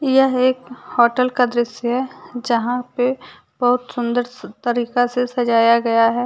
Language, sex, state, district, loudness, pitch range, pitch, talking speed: Hindi, female, Jharkhand, Deoghar, -18 LUFS, 240-255 Hz, 245 Hz, 145 wpm